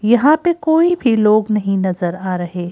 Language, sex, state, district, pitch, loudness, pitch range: Hindi, female, Madhya Pradesh, Bhopal, 215 Hz, -15 LUFS, 185-300 Hz